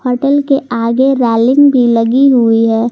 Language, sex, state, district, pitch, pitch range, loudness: Hindi, female, Jharkhand, Garhwa, 250 Hz, 230-275 Hz, -10 LUFS